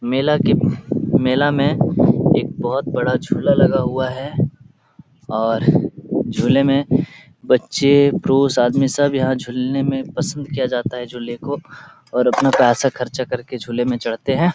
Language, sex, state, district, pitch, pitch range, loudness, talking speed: Hindi, male, Bihar, Jahanabad, 135 Hz, 125-145 Hz, -18 LUFS, 155 wpm